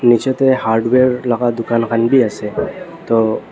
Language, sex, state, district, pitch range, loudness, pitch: Nagamese, male, Nagaland, Dimapur, 115-125 Hz, -15 LUFS, 120 Hz